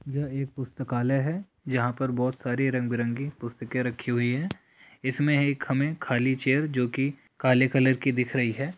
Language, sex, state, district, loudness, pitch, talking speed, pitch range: Hindi, male, Bihar, Jamui, -27 LUFS, 130 Hz, 190 wpm, 125-140 Hz